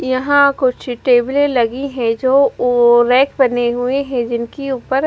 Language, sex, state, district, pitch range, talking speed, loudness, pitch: Hindi, female, Punjab, Fazilka, 240-275 Hz, 155 wpm, -15 LUFS, 255 Hz